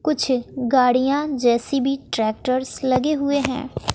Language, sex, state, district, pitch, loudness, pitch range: Hindi, female, Bihar, West Champaran, 260 Hz, -21 LUFS, 250-280 Hz